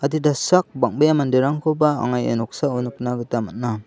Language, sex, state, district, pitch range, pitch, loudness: Garo, male, Meghalaya, South Garo Hills, 120-150 Hz, 130 Hz, -20 LUFS